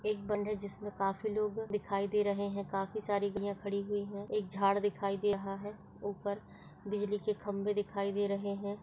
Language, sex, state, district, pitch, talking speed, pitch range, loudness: Hindi, female, Chhattisgarh, Bastar, 205 Hz, 195 wpm, 200-210 Hz, -36 LUFS